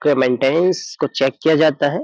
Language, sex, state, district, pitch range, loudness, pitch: Hindi, male, Uttar Pradesh, Jyotiba Phule Nagar, 135-165 Hz, -17 LUFS, 145 Hz